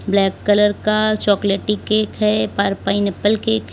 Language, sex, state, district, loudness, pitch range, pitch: Hindi, female, Uttar Pradesh, Lalitpur, -17 LUFS, 200-215 Hz, 205 Hz